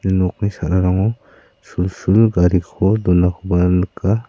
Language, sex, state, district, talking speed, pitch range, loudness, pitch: Garo, male, Meghalaya, South Garo Hills, 85 wpm, 90-100 Hz, -17 LUFS, 95 Hz